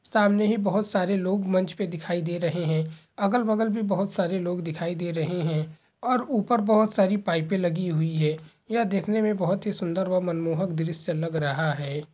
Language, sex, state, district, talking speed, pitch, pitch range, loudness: Hindi, male, Bihar, Purnia, 200 wpm, 180 Hz, 165-205 Hz, -26 LUFS